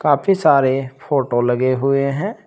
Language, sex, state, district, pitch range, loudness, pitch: Hindi, male, Uttar Pradesh, Shamli, 130-145 Hz, -17 LUFS, 135 Hz